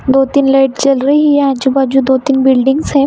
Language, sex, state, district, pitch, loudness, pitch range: Hindi, female, Bihar, Saran, 270 Hz, -11 LUFS, 265-280 Hz